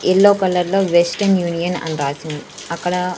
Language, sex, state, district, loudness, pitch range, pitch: Telugu, female, Andhra Pradesh, Sri Satya Sai, -17 LUFS, 170-185 Hz, 180 Hz